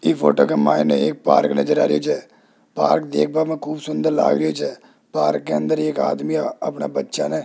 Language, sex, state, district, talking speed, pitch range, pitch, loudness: Hindi, male, Rajasthan, Jaipur, 210 wpm, 75-100 Hz, 75 Hz, -19 LUFS